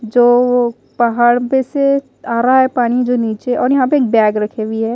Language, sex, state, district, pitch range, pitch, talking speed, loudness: Hindi, female, Chhattisgarh, Raipur, 230-260 Hz, 245 Hz, 230 wpm, -14 LUFS